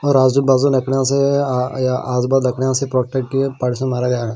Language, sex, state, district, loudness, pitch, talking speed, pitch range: Hindi, male, Maharashtra, Washim, -17 LUFS, 130 Hz, 205 wpm, 125-135 Hz